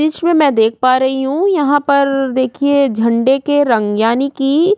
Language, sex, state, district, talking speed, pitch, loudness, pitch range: Hindi, female, Chhattisgarh, Korba, 175 wpm, 275 Hz, -13 LUFS, 255-290 Hz